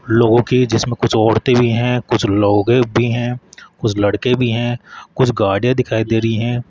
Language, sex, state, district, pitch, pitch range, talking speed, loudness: Hindi, male, Rajasthan, Jaipur, 120 Hz, 110-125 Hz, 190 wpm, -15 LUFS